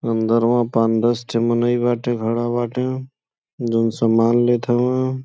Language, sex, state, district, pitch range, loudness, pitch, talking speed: Bhojpuri, male, Uttar Pradesh, Gorakhpur, 115-120 Hz, -19 LUFS, 120 Hz, 135 wpm